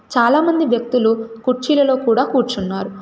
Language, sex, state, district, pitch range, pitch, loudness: Telugu, female, Telangana, Komaram Bheem, 225-265 Hz, 245 Hz, -17 LUFS